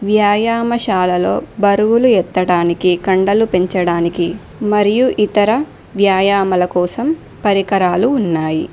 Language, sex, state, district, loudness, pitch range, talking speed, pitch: Telugu, female, Telangana, Mahabubabad, -14 LUFS, 180-215 Hz, 75 wpm, 200 Hz